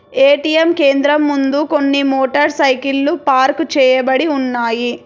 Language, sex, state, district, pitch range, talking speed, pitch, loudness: Telugu, female, Telangana, Hyderabad, 265-295 Hz, 105 wpm, 280 Hz, -13 LUFS